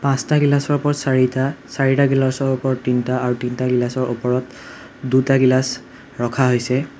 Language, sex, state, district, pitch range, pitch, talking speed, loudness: Assamese, male, Assam, Sonitpur, 125-135 Hz, 130 Hz, 135 wpm, -18 LUFS